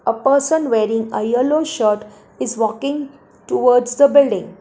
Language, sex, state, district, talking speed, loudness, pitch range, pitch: English, female, Gujarat, Valsad, 130 wpm, -17 LUFS, 220-280 Hz, 245 Hz